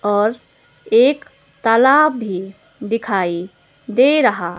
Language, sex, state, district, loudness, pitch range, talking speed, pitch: Hindi, female, Himachal Pradesh, Shimla, -16 LUFS, 180-245 Hz, 90 wpm, 210 Hz